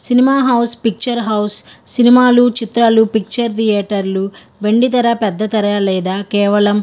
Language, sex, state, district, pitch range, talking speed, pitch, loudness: Telugu, female, Andhra Pradesh, Guntur, 205-240 Hz, 130 wpm, 220 Hz, -13 LUFS